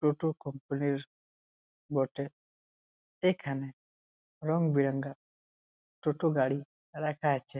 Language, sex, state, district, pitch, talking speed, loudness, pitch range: Bengali, male, West Bengal, Jalpaiguri, 140 Hz, 85 wpm, -33 LUFS, 135-150 Hz